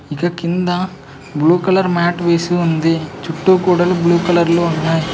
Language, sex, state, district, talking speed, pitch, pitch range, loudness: Telugu, female, Telangana, Mahabubabad, 150 wpm, 170 Hz, 165-180 Hz, -15 LUFS